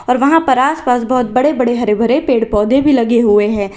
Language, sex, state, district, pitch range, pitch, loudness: Hindi, female, Uttar Pradesh, Lalitpur, 225-265 Hz, 250 Hz, -13 LUFS